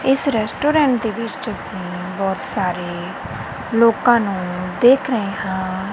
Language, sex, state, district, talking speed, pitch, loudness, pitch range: Punjabi, female, Punjab, Kapurthala, 240 wpm, 200 Hz, -19 LUFS, 185-240 Hz